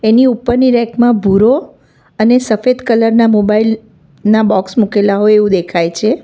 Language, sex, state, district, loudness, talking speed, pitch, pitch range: Gujarati, female, Gujarat, Valsad, -11 LUFS, 165 wpm, 220 Hz, 205-240 Hz